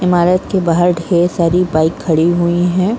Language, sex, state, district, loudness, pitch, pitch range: Hindi, female, Bihar, Saran, -14 LUFS, 175 Hz, 170-180 Hz